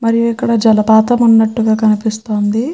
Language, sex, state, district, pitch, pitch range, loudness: Telugu, female, Andhra Pradesh, Chittoor, 225 Hz, 220-230 Hz, -12 LUFS